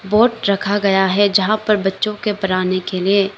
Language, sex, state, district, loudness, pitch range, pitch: Hindi, female, Arunachal Pradesh, Lower Dibang Valley, -17 LUFS, 195-210 Hz, 200 Hz